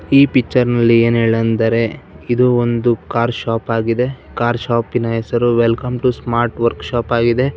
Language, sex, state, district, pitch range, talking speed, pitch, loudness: Kannada, male, Karnataka, Bangalore, 115-125 Hz, 145 wpm, 120 Hz, -16 LUFS